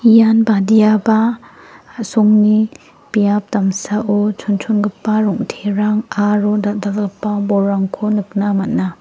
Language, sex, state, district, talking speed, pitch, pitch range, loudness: Garo, female, Meghalaya, West Garo Hills, 80 wpm, 210 Hz, 205-220 Hz, -15 LUFS